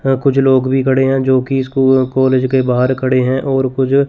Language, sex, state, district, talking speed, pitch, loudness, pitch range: Hindi, male, Chandigarh, Chandigarh, 235 wpm, 130 Hz, -13 LUFS, 130-135 Hz